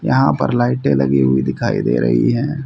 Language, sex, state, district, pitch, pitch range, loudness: Hindi, male, Haryana, Rohtak, 65 Hz, 60-70 Hz, -16 LUFS